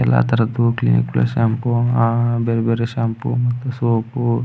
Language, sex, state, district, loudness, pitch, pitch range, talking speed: Kannada, male, Karnataka, Belgaum, -18 LUFS, 115 Hz, 115-120 Hz, 175 wpm